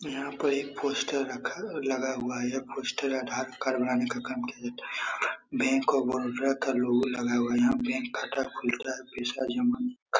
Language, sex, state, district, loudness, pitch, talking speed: Hindi, male, Bihar, Saran, -30 LUFS, 135 Hz, 225 wpm